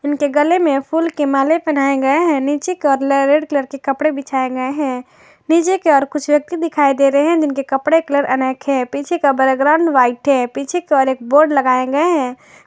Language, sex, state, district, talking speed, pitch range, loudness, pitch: Hindi, female, Jharkhand, Garhwa, 225 wpm, 270-310 Hz, -15 LUFS, 280 Hz